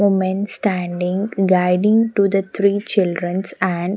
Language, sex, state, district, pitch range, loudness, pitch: English, female, Haryana, Jhajjar, 180-200 Hz, -18 LUFS, 190 Hz